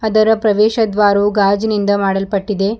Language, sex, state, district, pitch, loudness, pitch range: Kannada, female, Karnataka, Bidar, 205 Hz, -14 LUFS, 200-215 Hz